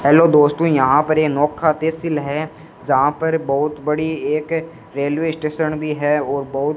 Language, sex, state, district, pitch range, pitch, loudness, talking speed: Hindi, male, Rajasthan, Bikaner, 145-160 Hz, 150 Hz, -18 LUFS, 175 wpm